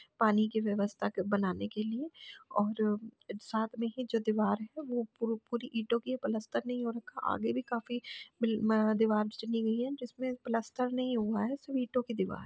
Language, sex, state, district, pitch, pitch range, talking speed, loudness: Hindi, female, Uttar Pradesh, Jalaun, 230 Hz, 215-250 Hz, 195 wpm, -34 LUFS